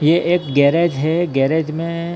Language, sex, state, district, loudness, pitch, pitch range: Hindi, male, Maharashtra, Mumbai Suburban, -17 LUFS, 160 Hz, 145-170 Hz